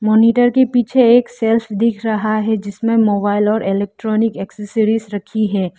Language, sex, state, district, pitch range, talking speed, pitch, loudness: Hindi, female, Arunachal Pradesh, Lower Dibang Valley, 210-230 Hz, 155 wpm, 220 Hz, -16 LUFS